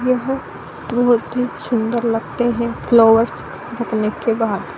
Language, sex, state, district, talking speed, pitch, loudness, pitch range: Hindi, female, Bihar, Saran, 125 wpm, 235 Hz, -18 LUFS, 225-245 Hz